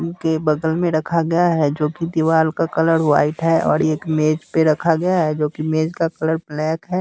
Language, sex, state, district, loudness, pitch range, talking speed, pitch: Hindi, male, Bihar, West Champaran, -18 LUFS, 155-165 Hz, 230 wpm, 160 Hz